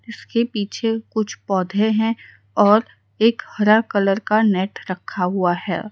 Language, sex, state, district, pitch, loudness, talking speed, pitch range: Hindi, female, Gujarat, Valsad, 210 Hz, -20 LUFS, 140 wpm, 190-220 Hz